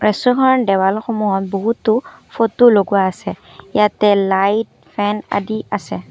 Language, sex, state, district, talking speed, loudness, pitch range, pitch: Assamese, female, Assam, Kamrup Metropolitan, 120 wpm, -16 LUFS, 195-230 Hz, 210 Hz